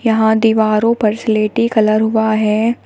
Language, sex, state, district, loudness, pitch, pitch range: Hindi, female, Uttar Pradesh, Shamli, -14 LUFS, 220 Hz, 215-225 Hz